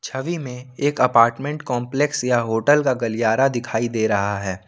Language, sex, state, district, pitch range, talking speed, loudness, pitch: Hindi, male, Jharkhand, Ranchi, 115-135 Hz, 165 wpm, -20 LUFS, 125 Hz